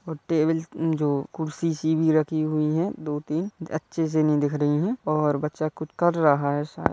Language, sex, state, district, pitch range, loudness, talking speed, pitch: Hindi, male, Chhattisgarh, Kabirdham, 150-165 Hz, -25 LUFS, 215 wpm, 155 Hz